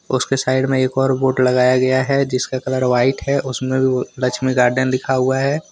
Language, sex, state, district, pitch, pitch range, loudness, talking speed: Hindi, male, Jharkhand, Deoghar, 130 Hz, 130-135 Hz, -17 LUFS, 200 wpm